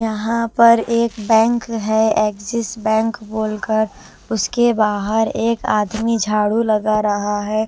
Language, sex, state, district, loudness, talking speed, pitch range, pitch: Hindi, female, Bihar, West Champaran, -18 LUFS, 135 wpm, 215-230 Hz, 220 Hz